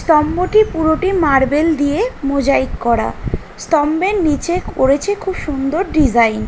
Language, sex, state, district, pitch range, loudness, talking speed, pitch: Bengali, female, West Bengal, North 24 Parganas, 275-360 Hz, -15 LUFS, 120 wpm, 310 Hz